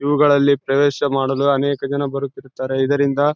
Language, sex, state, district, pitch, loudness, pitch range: Kannada, male, Karnataka, Bellary, 140 Hz, -18 LUFS, 135-145 Hz